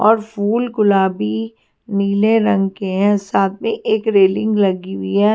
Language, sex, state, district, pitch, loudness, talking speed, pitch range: Hindi, female, Haryana, Jhajjar, 200 Hz, -17 LUFS, 155 wpm, 190-215 Hz